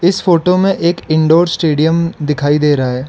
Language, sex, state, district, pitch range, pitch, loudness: Hindi, male, Arunachal Pradesh, Lower Dibang Valley, 150-175 Hz, 165 Hz, -13 LUFS